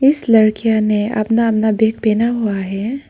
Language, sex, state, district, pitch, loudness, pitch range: Hindi, female, Arunachal Pradesh, Lower Dibang Valley, 220 Hz, -15 LUFS, 215-230 Hz